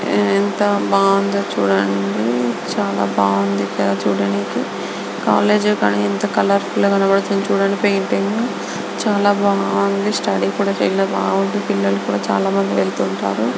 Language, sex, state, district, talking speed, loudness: Telugu, female, Andhra Pradesh, Anantapur, 90 wpm, -17 LUFS